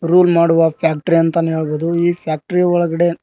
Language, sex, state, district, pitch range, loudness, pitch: Kannada, male, Karnataka, Koppal, 165-175 Hz, -15 LUFS, 170 Hz